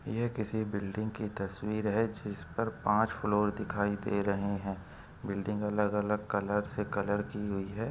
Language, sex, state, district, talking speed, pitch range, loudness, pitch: Hindi, male, Chhattisgarh, Korba, 180 wpm, 100-110 Hz, -33 LUFS, 105 Hz